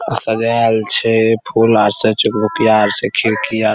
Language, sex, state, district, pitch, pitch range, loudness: Maithili, male, Bihar, Saharsa, 110 Hz, 110-115 Hz, -13 LUFS